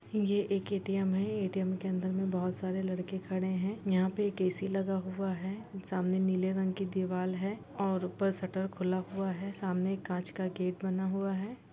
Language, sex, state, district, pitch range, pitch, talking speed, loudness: Hindi, female, Chhattisgarh, Kabirdham, 185-195 Hz, 190 Hz, 205 wpm, -34 LUFS